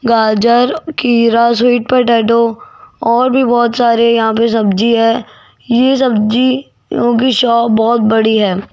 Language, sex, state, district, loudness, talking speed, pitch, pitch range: Hindi, female, Rajasthan, Jaipur, -12 LUFS, 130 wpm, 235 Hz, 225-245 Hz